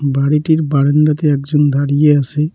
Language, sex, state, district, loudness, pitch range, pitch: Bengali, male, West Bengal, Cooch Behar, -13 LUFS, 140-150 Hz, 150 Hz